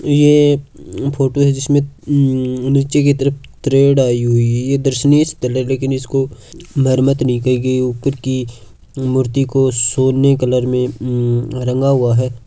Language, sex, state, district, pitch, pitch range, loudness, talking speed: Marwari, male, Rajasthan, Churu, 135 Hz, 125-140 Hz, -15 LUFS, 140 wpm